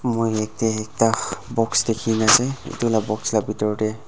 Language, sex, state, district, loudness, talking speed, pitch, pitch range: Nagamese, male, Nagaland, Dimapur, -21 LUFS, 190 wpm, 110 Hz, 110-115 Hz